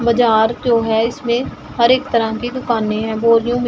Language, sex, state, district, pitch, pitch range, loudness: Hindi, female, Punjab, Pathankot, 235 Hz, 225-240 Hz, -16 LUFS